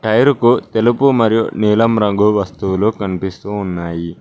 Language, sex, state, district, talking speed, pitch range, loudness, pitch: Telugu, male, Telangana, Mahabubabad, 130 wpm, 95-115 Hz, -15 LUFS, 105 Hz